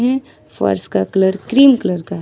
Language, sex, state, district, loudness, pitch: Hindi, female, Jharkhand, Ranchi, -15 LUFS, 190 Hz